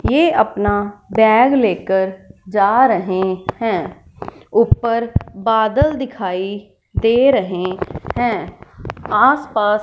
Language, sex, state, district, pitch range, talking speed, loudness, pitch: Hindi, female, Punjab, Fazilka, 190-245 Hz, 90 wpm, -16 LUFS, 215 Hz